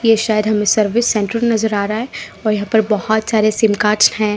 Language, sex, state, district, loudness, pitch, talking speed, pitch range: Hindi, female, Punjab, Pathankot, -15 LUFS, 215 Hz, 235 wpm, 210-220 Hz